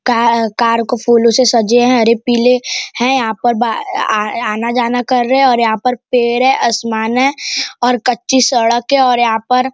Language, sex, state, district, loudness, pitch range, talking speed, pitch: Hindi, male, Maharashtra, Nagpur, -13 LUFS, 230-250 Hz, 215 wpm, 240 Hz